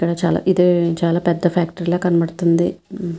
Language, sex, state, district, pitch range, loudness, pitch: Telugu, female, Andhra Pradesh, Visakhapatnam, 170-175 Hz, -18 LUFS, 175 Hz